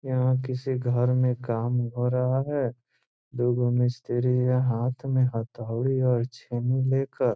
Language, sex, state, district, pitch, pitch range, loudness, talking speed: Hindi, male, Bihar, Gopalganj, 125 Hz, 120-130 Hz, -26 LUFS, 155 wpm